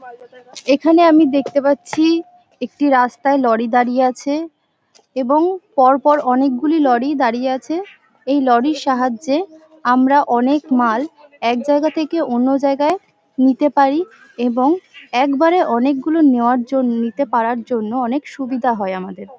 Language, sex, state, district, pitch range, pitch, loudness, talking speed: Bengali, female, West Bengal, North 24 Parganas, 245-300 Hz, 270 Hz, -16 LUFS, 125 wpm